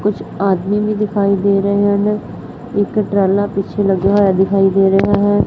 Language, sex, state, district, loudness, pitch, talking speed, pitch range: Punjabi, female, Punjab, Fazilka, -15 LUFS, 200 Hz, 175 wpm, 195-205 Hz